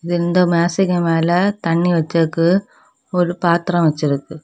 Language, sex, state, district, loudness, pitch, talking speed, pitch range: Tamil, female, Tamil Nadu, Kanyakumari, -17 LUFS, 170 Hz, 110 wpm, 165-180 Hz